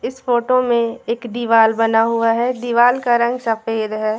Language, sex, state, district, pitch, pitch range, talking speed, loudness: Hindi, female, Jharkhand, Garhwa, 235 Hz, 225-240 Hz, 185 wpm, -17 LUFS